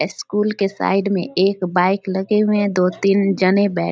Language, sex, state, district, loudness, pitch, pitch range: Hindi, female, Bihar, Samastipur, -18 LUFS, 195 Hz, 185-200 Hz